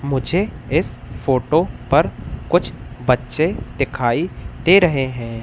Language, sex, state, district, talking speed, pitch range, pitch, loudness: Hindi, male, Madhya Pradesh, Katni, 110 wpm, 125-160 Hz, 135 Hz, -19 LUFS